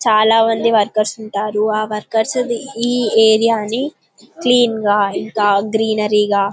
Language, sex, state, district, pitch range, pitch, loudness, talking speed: Telugu, female, Telangana, Karimnagar, 210-230 Hz, 220 Hz, -16 LUFS, 130 wpm